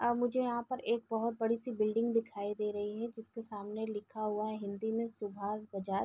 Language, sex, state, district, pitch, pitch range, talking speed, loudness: Hindi, female, Uttar Pradesh, Gorakhpur, 220 Hz, 210-230 Hz, 220 wpm, -36 LUFS